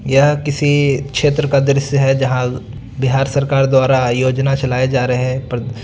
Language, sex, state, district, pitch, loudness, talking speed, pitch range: Hindi, male, Bihar, Jahanabad, 135 Hz, -15 LUFS, 175 wpm, 130-140 Hz